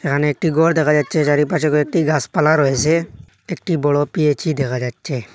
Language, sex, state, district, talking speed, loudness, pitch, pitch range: Bengali, male, Assam, Hailakandi, 155 wpm, -17 LUFS, 150 Hz, 145-160 Hz